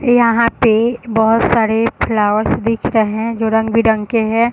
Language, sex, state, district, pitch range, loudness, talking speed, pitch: Hindi, female, Bihar, Sitamarhi, 220-230 Hz, -14 LUFS, 160 wpm, 225 Hz